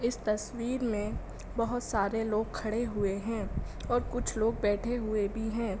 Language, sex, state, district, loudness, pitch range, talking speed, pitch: Hindi, female, Bihar, Saran, -32 LUFS, 210-235 Hz, 155 wpm, 220 Hz